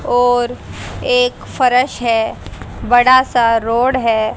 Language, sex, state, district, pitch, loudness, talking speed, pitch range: Hindi, female, Haryana, Rohtak, 245 Hz, -14 LUFS, 110 wpm, 230-255 Hz